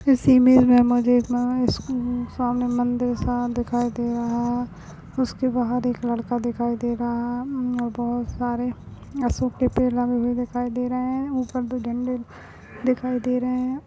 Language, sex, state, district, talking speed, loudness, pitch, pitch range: Hindi, female, Maharashtra, Aurangabad, 155 wpm, -23 LUFS, 245 Hz, 240-250 Hz